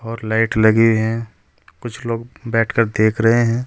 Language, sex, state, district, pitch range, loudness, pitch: Hindi, male, Uttar Pradesh, Saharanpur, 110-115 Hz, -17 LUFS, 115 Hz